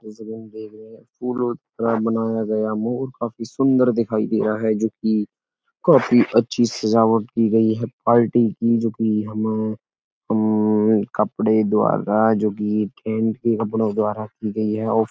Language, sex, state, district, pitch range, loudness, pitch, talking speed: Hindi, male, Uttar Pradesh, Etah, 110-115 Hz, -20 LUFS, 110 Hz, 170 wpm